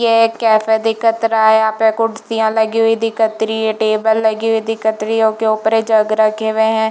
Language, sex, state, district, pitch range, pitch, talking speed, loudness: Hindi, female, Chhattisgarh, Bilaspur, 220-225 Hz, 220 Hz, 225 wpm, -14 LUFS